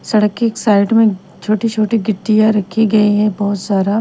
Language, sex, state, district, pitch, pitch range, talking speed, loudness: Hindi, female, Himachal Pradesh, Shimla, 215 Hz, 205-220 Hz, 165 wpm, -14 LUFS